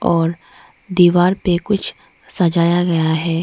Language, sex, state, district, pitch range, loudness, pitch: Hindi, female, Arunachal Pradesh, Lower Dibang Valley, 165-180 Hz, -16 LUFS, 175 Hz